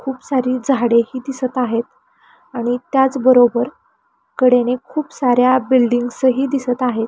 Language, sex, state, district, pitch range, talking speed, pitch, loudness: Marathi, female, Maharashtra, Pune, 245-265 Hz, 125 wpm, 255 Hz, -16 LUFS